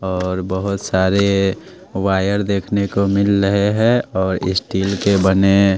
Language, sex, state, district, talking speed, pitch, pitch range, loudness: Hindi, male, Punjab, Pathankot, 135 wpm, 100 Hz, 95-100 Hz, -17 LUFS